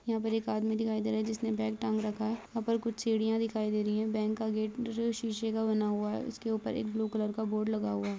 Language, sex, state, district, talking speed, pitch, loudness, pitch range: Hindi, female, Chhattisgarh, Bastar, 285 wpm, 220 Hz, -33 LUFS, 215-225 Hz